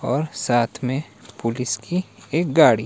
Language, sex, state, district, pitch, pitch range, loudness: Hindi, male, Himachal Pradesh, Shimla, 125 Hz, 120-150 Hz, -22 LUFS